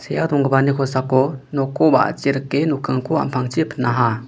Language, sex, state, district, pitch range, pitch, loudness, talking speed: Garo, male, Meghalaya, West Garo Hills, 130-145 Hz, 135 Hz, -19 LUFS, 110 wpm